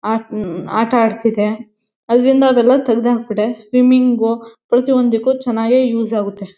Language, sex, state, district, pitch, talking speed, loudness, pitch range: Kannada, female, Karnataka, Mysore, 230 Hz, 90 wpm, -15 LUFS, 220-245 Hz